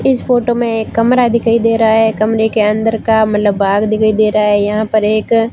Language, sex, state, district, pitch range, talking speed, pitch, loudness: Hindi, female, Rajasthan, Barmer, 215-230 Hz, 240 wpm, 220 Hz, -12 LUFS